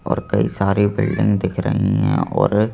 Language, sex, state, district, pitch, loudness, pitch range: Hindi, male, Madhya Pradesh, Bhopal, 100 Hz, -18 LUFS, 95-105 Hz